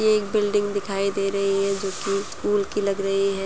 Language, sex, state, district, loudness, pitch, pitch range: Hindi, male, Chhattisgarh, Bastar, -24 LUFS, 200 Hz, 195-205 Hz